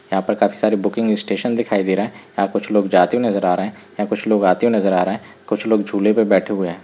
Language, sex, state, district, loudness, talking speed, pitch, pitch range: Hindi, male, Uttarakhand, Uttarkashi, -18 LUFS, 325 wpm, 105 Hz, 100-110 Hz